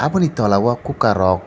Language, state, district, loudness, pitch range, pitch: Kokborok, Tripura, Dhalai, -17 LUFS, 100-145 Hz, 120 Hz